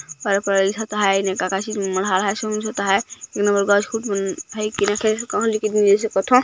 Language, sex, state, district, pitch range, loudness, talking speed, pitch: Hindi, male, Chhattisgarh, Jashpur, 195-215 Hz, -20 LUFS, 120 wpm, 205 Hz